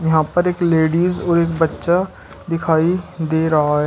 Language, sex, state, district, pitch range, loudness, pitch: Hindi, male, Uttar Pradesh, Shamli, 160-175 Hz, -17 LUFS, 165 Hz